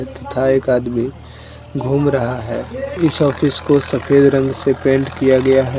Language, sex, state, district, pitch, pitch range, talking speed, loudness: Hindi, male, Jharkhand, Deoghar, 135 Hz, 130-140 Hz, 165 wpm, -16 LUFS